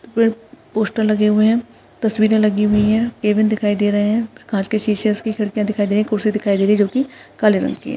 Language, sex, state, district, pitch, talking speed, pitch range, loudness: Hindi, female, Maharashtra, Solapur, 215 Hz, 235 wpm, 210-220 Hz, -17 LUFS